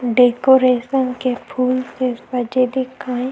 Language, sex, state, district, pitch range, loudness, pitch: Chhattisgarhi, female, Chhattisgarh, Sukma, 250-260 Hz, -18 LUFS, 255 Hz